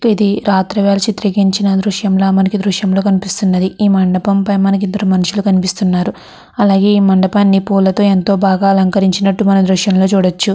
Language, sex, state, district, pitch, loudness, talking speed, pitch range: Telugu, female, Andhra Pradesh, Guntur, 195 Hz, -12 LUFS, 165 wpm, 190-200 Hz